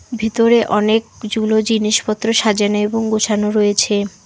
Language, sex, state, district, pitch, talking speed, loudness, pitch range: Bengali, female, West Bengal, Alipurduar, 215 Hz, 100 wpm, -16 LUFS, 210-225 Hz